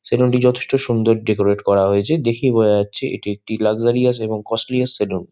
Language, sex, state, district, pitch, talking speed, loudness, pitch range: Bengali, male, West Bengal, Malda, 115 Hz, 205 wpm, -17 LUFS, 105-125 Hz